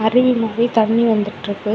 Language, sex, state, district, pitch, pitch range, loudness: Tamil, female, Tamil Nadu, Kanyakumari, 225 Hz, 215-235 Hz, -17 LUFS